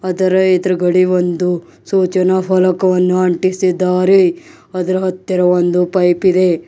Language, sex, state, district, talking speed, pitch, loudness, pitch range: Kannada, male, Karnataka, Bidar, 100 wpm, 185 Hz, -14 LUFS, 180-185 Hz